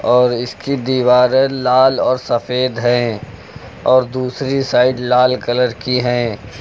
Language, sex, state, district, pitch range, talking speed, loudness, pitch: Hindi, male, Uttar Pradesh, Lucknow, 120-130 Hz, 125 wpm, -15 LUFS, 125 Hz